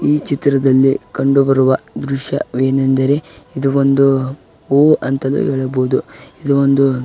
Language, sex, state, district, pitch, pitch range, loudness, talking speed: Kannada, male, Karnataka, Raichur, 135 Hz, 135-140 Hz, -15 LUFS, 120 wpm